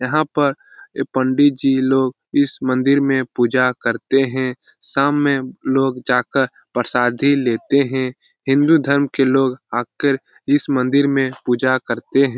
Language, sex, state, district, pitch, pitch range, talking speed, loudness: Hindi, male, Bihar, Lakhisarai, 135 Hz, 130-140 Hz, 150 wpm, -18 LUFS